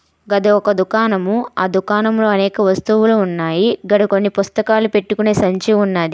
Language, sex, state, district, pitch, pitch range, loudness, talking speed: Telugu, female, Telangana, Hyderabad, 205 Hz, 195-215 Hz, -15 LUFS, 135 wpm